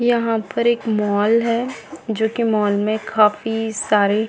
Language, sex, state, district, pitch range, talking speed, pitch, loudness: Hindi, female, Chhattisgarh, Bilaspur, 210-230 Hz, 155 wpm, 220 Hz, -19 LUFS